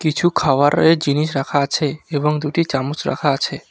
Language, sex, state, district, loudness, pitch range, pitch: Bengali, male, West Bengal, Alipurduar, -18 LUFS, 140-155 Hz, 150 Hz